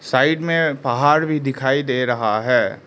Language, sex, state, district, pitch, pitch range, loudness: Hindi, male, Arunachal Pradesh, Lower Dibang Valley, 135 Hz, 130-155 Hz, -18 LUFS